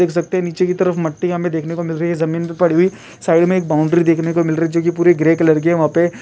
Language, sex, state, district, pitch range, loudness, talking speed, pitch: Hindi, male, Rajasthan, Churu, 165-175 Hz, -16 LUFS, 320 wpm, 170 Hz